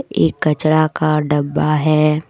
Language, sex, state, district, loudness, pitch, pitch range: Hindi, female, Jharkhand, Deoghar, -16 LUFS, 155 Hz, 150-155 Hz